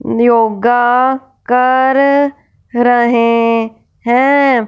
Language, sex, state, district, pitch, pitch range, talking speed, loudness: Hindi, female, Punjab, Fazilka, 245 Hz, 235-265 Hz, 50 wpm, -12 LUFS